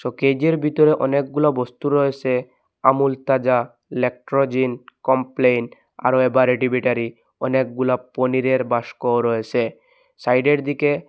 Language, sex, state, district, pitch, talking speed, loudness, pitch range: Bengali, male, Assam, Hailakandi, 130 Hz, 95 wpm, -20 LUFS, 125-140 Hz